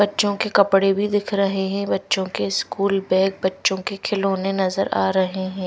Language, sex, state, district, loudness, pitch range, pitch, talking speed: Hindi, female, Himachal Pradesh, Shimla, -21 LUFS, 190-200 Hz, 195 Hz, 190 wpm